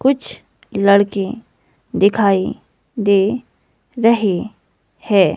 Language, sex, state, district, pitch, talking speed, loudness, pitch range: Hindi, female, Himachal Pradesh, Shimla, 205 Hz, 65 wpm, -17 LUFS, 195-230 Hz